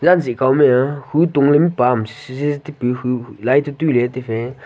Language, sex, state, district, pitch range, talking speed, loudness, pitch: Wancho, male, Arunachal Pradesh, Longding, 125-145 Hz, 155 wpm, -17 LUFS, 130 Hz